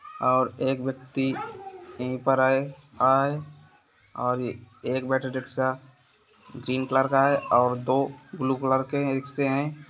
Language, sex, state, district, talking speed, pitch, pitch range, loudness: Hindi, male, Bihar, Gopalganj, 125 wpm, 130 Hz, 130-140 Hz, -26 LUFS